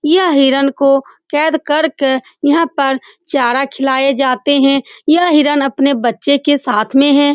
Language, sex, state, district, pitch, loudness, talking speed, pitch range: Hindi, female, Bihar, Saran, 275 Hz, -13 LUFS, 170 wpm, 270-295 Hz